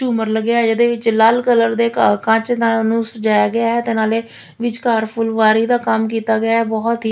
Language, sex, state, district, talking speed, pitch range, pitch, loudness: Punjabi, female, Punjab, Fazilka, 220 wpm, 220-235 Hz, 225 Hz, -16 LUFS